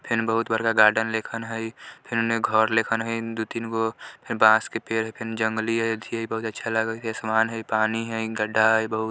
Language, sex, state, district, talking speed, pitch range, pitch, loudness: Bajjika, male, Bihar, Vaishali, 215 wpm, 110-115 Hz, 110 Hz, -24 LUFS